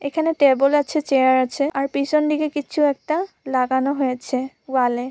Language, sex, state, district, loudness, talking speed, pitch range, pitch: Bengali, female, West Bengal, Purulia, -20 LUFS, 175 wpm, 260-300 Hz, 280 Hz